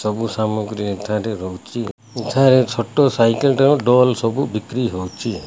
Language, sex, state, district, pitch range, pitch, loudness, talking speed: Odia, male, Odisha, Malkangiri, 105-125 Hz, 115 Hz, -18 LUFS, 130 wpm